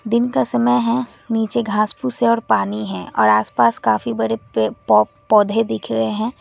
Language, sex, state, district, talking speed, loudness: Hindi, female, West Bengal, Alipurduar, 195 wpm, -18 LUFS